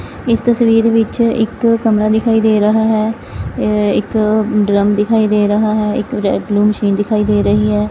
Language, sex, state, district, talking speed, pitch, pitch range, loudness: Punjabi, female, Punjab, Fazilka, 175 wpm, 215 Hz, 210-225 Hz, -13 LUFS